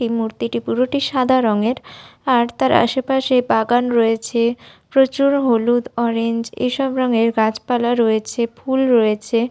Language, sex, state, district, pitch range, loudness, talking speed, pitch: Bengali, female, West Bengal, Jhargram, 230-255 Hz, -18 LUFS, 125 wpm, 240 Hz